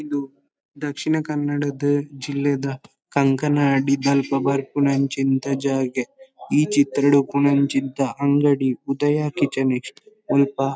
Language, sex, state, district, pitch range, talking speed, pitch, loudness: Tulu, male, Karnataka, Dakshina Kannada, 135-145 Hz, 85 wpm, 140 Hz, -21 LUFS